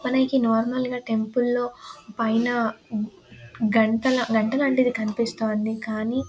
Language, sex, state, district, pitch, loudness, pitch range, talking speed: Telugu, female, Telangana, Nalgonda, 225 Hz, -24 LUFS, 220-245 Hz, 85 wpm